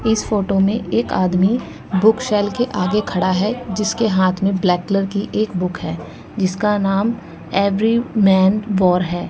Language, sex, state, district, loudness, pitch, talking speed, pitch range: Hindi, female, Haryana, Jhajjar, -18 LUFS, 195 Hz, 160 wpm, 185-215 Hz